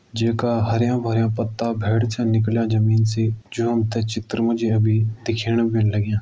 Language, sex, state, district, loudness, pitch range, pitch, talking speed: Garhwali, male, Uttarakhand, Uttarkashi, -21 LUFS, 110-115 Hz, 115 Hz, 155 wpm